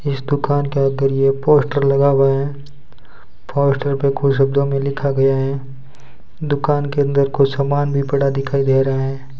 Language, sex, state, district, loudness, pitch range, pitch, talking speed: Hindi, male, Rajasthan, Bikaner, -17 LUFS, 135-140 Hz, 140 Hz, 180 wpm